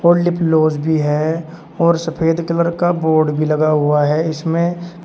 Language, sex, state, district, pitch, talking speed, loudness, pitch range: Hindi, male, Uttar Pradesh, Shamli, 160 Hz, 165 wpm, -16 LUFS, 155-170 Hz